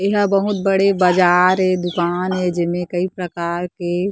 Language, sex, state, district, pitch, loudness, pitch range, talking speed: Chhattisgarhi, female, Chhattisgarh, Korba, 180 Hz, -18 LUFS, 175-195 Hz, 160 wpm